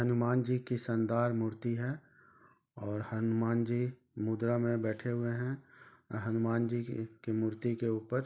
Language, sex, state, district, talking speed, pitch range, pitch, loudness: Hindi, male, Jharkhand, Sahebganj, 150 wpm, 110-120 Hz, 120 Hz, -34 LUFS